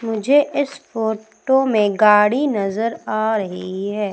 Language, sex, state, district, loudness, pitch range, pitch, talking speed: Hindi, female, Madhya Pradesh, Umaria, -18 LUFS, 210-265 Hz, 220 Hz, 130 wpm